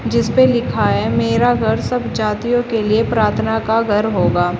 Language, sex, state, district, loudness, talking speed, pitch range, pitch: Hindi, female, Uttar Pradesh, Shamli, -16 LUFS, 180 wpm, 205-235 Hz, 220 Hz